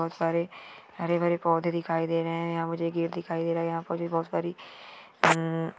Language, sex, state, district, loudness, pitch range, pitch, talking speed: Marwari, female, Rajasthan, Churu, -28 LUFS, 165-170 Hz, 165 Hz, 240 wpm